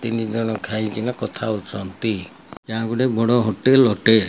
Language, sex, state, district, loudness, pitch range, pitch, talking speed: Odia, male, Odisha, Malkangiri, -21 LUFS, 105-115 Hz, 110 Hz, 155 wpm